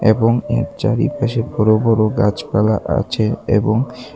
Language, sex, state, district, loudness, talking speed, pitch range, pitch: Bengali, male, Tripura, West Tripura, -17 LUFS, 115 wpm, 110-120 Hz, 115 Hz